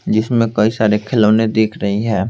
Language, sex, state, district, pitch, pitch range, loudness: Hindi, male, Bihar, Patna, 110 Hz, 105-110 Hz, -15 LUFS